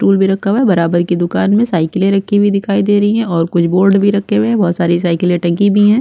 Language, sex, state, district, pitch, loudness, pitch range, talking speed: Hindi, female, Chhattisgarh, Sukma, 195 Hz, -13 LUFS, 175-205 Hz, 290 wpm